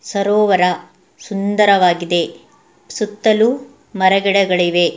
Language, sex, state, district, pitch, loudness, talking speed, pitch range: Kannada, female, Karnataka, Mysore, 195 Hz, -15 LUFS, 60 wpm, 180-210 Hz